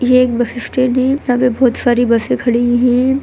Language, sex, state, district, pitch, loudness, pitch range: Hindi, female, Bihar, Begusarai, 250 Hz, -14 LUFS, 240-255 Hz